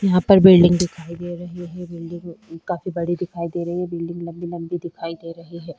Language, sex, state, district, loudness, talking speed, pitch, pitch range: Hindi, female, Chhattisgarh, Sukma, -19 LUFS, 230 wpm, 175 Hz, 170-175 Hz